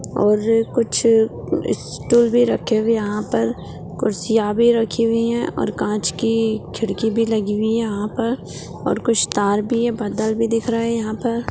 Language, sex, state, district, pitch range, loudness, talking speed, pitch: Hindi, female, Bihar, Purnia, 215-230 Hz, -19 LUFS, 180 wpm, 225 Hz